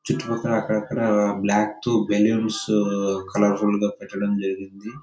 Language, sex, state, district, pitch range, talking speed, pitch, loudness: Telugu, male, Andhra Pradesh, Chittoor, 100-110 Hz, 120 wpm, 105 Hz, -22 LUFS